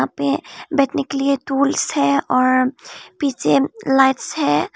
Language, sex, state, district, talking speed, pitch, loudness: Hindi, female, Tripura, Unakoti, 125 wpm, 270 Hz, -18 LUFS